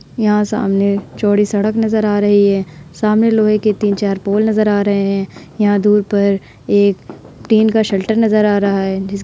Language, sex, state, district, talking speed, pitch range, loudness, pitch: Hindi, female, Uttar Pradesh, Hamirpur, 195 wpm, 200-215 Hz, -14 LUFS, 205 Hz